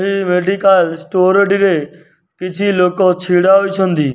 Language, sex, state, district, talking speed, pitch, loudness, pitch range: Odia, male, Odisha, Nuapada, 115 wpm, 185 Hz, -13 LUFS, 180-195 Hz